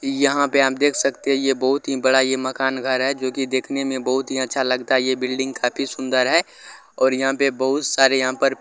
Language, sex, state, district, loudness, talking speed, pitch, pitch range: Maithili, male, Bihar, Vaishali, -20 LUFS, 245 wpm, 135 Hz, 130-135 Hz